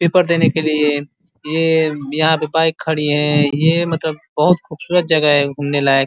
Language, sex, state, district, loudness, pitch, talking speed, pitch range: Hindi, male, Uttar Pradesh, Ghazipur, -16 LUFS, 155 Hz, 180 wpm, 145-165 Hz